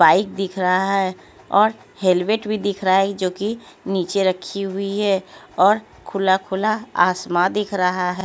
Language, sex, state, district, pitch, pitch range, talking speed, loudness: Hindi, female, Haryana, Jhajjar, 195 Hz, 185-200 Hz, 165 wpm, -20 LUFS